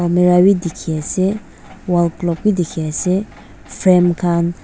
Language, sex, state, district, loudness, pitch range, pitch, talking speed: Nagamese, female, Nagaland, Dimapur, -16 LUFS, 165-185 Hz, 175 Hz, 140 wpm